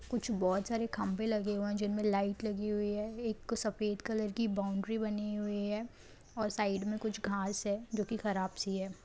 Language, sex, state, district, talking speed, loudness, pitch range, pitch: Hindi, female, Jharkhand, Jamtara, 205 wpm, -36 LUFS, 200-220 Hz, 210 Hz